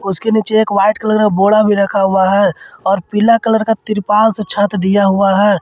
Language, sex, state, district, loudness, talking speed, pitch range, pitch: Hindi, male, Jharkhand, Ranchi, -13 LUFS, 215 wpm, 195-215 Hz, 205 Hz